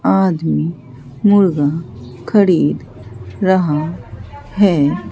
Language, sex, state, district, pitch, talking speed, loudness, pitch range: Hindi, female, Bihar, Katihar, 150 Hz, 60 wpm, -15 LUFS, 125-185 Hz